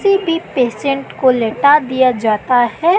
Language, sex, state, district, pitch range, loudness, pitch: Hindi, female, Madhya Pradesh, Katni, 245-305 Hz, -14 LUFS, 260 Hz